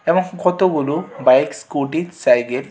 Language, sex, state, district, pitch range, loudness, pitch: Bengali, male, Tripura, West Tripura, 135-180 Hz, -17 LUFS, 155 Hz